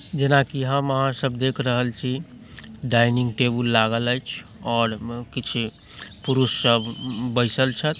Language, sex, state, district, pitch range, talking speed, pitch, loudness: Maithili, male, Bihar, Samastipur, 115-130 Hz, 135 wpm, 125 Hz, -22 LUFS